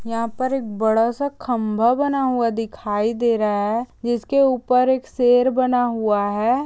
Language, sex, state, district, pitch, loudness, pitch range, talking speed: Hindi, female, Bihar, Jamui, 240 Hz, -20 LUFS, 220-255 Hz, 170 wpm